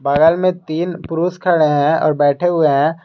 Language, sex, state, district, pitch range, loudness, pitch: Hindi, male, Jharkhand, Garhwa, 150-175 Hz, -15 LUFS, 165 Hz